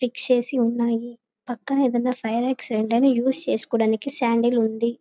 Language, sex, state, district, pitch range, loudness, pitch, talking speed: Telugu, female, Andhra Pradesh, Guntur, 230-255 Hz, -22 LUFS, 240 Hz, 130 wpm